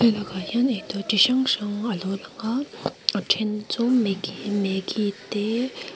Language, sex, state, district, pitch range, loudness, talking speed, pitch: Mizo, female, Mizoram, Aizawl, 200-235 Hz, -24 LUFS, 140 wpm, 210 Hz